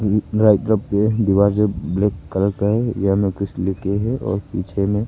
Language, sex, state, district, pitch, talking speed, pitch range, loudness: Hindi, male, Arunachal Pradesh, Papum Pare, 100 Hz, 235 wpm, 100-105 Hz, -19 LUFS